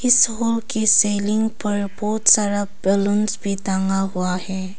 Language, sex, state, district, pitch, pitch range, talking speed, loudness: Hindi, female, Arunachal Pradesh, Papum Pare, 205 Hz, 195-220 Hz, 150 wpm, -19 LUFS